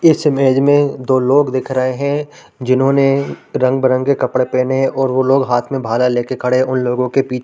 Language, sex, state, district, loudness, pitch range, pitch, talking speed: Hindi, male, Chhattisgarh, Raigarh, -15 LUFS, 130-135 Hz, 130 Hz, 235 wpm